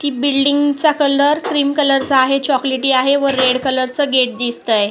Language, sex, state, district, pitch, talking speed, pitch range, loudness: Marathi, female, Maharashtra, Sindhudurg, 275 Hz, 185 wpm, 260-285 Hz, -15 LUFS